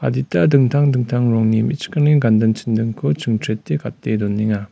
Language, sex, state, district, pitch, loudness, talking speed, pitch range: Garo, male, Meghalaya, West Garo Hills, 110 Hz, -17 LUFS, 115 wpm, 110-125 Hz